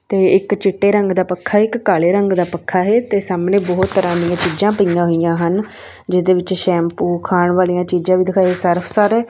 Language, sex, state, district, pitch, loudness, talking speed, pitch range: Punjabi, female, Punjab, Fazilka, 185 Hz, -15 LUFS, 200 wpm, 175-200 Hz